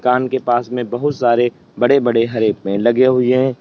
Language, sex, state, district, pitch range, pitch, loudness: Hindi, male, Uttar Pradesh, Lalitpur, 120-130 Hz, 125 Hz, -16 LUFS